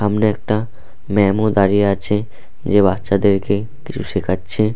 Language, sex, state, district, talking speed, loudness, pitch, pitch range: Bengali, male, West Bengal, Purulia, 125 wpm, -17 LUFS, 105 Hz, 100-110 Hz